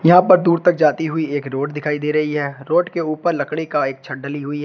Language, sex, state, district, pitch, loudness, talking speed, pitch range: Hindi, male, Uttar Pradesh, Shamli, 150 Hz, -18 LUFS, 285 wpm, 145-165 Hz